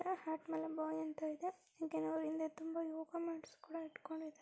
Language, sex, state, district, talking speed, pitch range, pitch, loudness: Kannada, female, Karnataka, Dakshina Kannada, 175 wpm, 315-330 Hz, 320 Hz, -44 LUFS